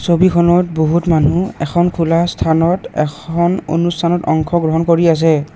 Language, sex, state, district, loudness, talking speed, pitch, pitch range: Assamese, male, Assam, Kamrup Metropolitan, -14 LUFS, 130 wpm, 170 Hz, 160-175 Hz